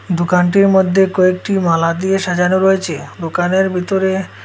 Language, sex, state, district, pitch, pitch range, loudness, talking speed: Bengali, male, Assam, Hailakandi, 185 Hz, 175-190 Hz, -14 LUFS, 120 wpm